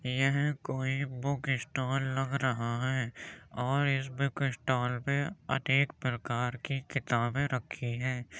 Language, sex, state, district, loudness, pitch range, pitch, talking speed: Hindi, male, Uttar Pradesh, Jyotiba Phule Nagar, -32 LUFS, 125-140 Hz, 130 Hz, 130 wpm